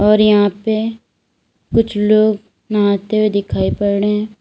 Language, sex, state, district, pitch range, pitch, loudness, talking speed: Hindi, female, Uttar Pradesh, Lalitpur, 205-215 Hz, 210 Hz, -15 LUFS, 150 wpm